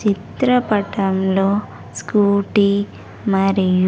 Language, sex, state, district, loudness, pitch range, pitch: Telugu, female, Andhra Pradesh, Sri Satya Sai, -18 LUFS, 195-205 Hz, 200 Hz